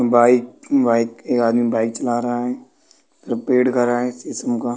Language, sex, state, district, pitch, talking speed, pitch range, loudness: Hindi, male, Uttar Pradesh, Budaun, 120 Hz, 165 wpm, 120-125 Hz, -19 LUFS